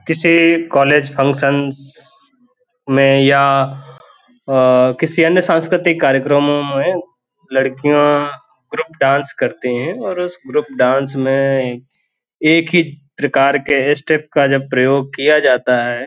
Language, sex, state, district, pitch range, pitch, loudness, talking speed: Hindi, male, Uttar Pradesh, Hamirpur, 135-165 Hz, 140 Hz, -14 LUFS, 115 wpm